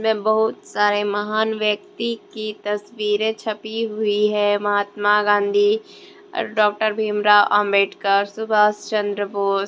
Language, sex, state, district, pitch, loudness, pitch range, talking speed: Hindi, female, Jharkhand, Deoghar, 210 Hz, -20 LUFS, 205-220 Hz, 105 wpm